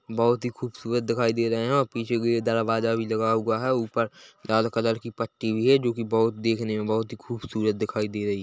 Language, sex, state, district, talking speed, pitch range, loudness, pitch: Hindi, male, Chhattisgarh, Bilaspur, 235 wpm, 110-120 Hz, -25 LUFS, 115 Hz